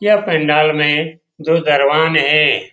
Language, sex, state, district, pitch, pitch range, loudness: Hindi, male, Bihar, Jamui, 155 Hz, 150-160 Hz, -13 LUFS